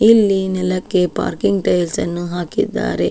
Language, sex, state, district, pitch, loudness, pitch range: Kannada, female, Karnataka, Shimoga, 180 Hz, -18 LUFS, 175-195 Hz